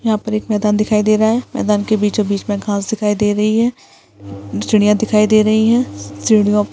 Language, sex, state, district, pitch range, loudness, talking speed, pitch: Hindi, female, Chhattisgarh, Korba, 205-215 Hz, -15 LUFS, 215 wpm, 210 Hz